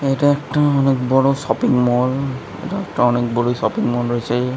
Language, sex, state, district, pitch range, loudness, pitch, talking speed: Bengali, male, West Bengal, Kolkata, 120-135 Hz, -18 LUFS, 125 Hz, 145 wpm